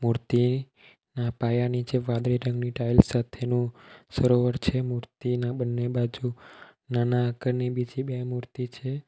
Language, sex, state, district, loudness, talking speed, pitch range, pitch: Gujarati, male, Gujarat, Valsad, -27 LUFS, 125 wpm, 120-125 Hz, 125 Hz